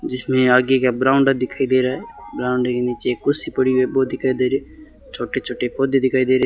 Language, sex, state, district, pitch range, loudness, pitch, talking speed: Hindi, male, Rajasthan, Bikaner, 125-135 Hz, -19 LUFS, 130 Hz, 240 wpm